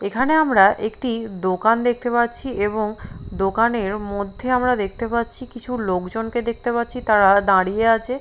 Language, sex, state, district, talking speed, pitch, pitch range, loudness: Bengali, female, Bihar, Katihar, 145 wpm, 225 Hz, 200-240 Hz, -20 LUFS